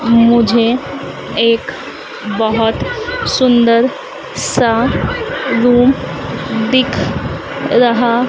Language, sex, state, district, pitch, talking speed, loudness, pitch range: Hindi, female, Madhya Pradesh, Dhar, 240 Hz, 60 wpm, -14 LUFS, 230-265 Hz